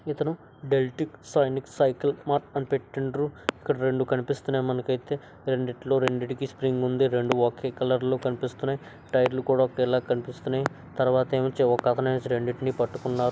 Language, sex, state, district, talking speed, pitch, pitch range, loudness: Telugu, male, Andhra Pradesh, Krishna, 140 wpm, 130 Hz, 125-135 Hz, -27 LUFS